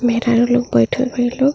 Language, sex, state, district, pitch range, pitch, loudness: Bhojpuri, female, Uttar Pradesh, Ghazipur, 235-250 Hz, 245 Hz, -16 LUFS